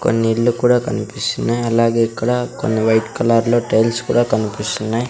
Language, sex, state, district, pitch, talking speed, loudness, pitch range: Telugu, male, Andhra Pradesh, Sri Satya Sai, 115 Hz, 140 wpm, -17 LUFS, 110-120 Hz